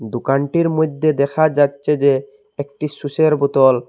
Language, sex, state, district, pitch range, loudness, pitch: Bengali, male, Assam, Hailakandi, 140-155 Hz, -17 LUFS, 140 Hz